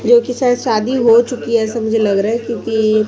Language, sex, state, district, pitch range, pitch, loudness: Hindi, female, Chhattisgarh, Raipur, 220-240 Hz, 230 Hz, -15 LUFS